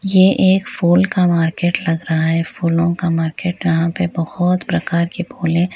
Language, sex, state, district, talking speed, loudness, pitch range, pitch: Hindi, female, Bihar, East Champaran, 185 wpm, -17 LUFS, 165-180 Hz, 175 Hz